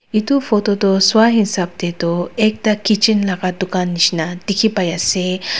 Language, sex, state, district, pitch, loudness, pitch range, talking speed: Nagamese, female, Nagaland, Dimapur, 195 Hz, -16 LUFS, 180-215 Hz, 160 wpm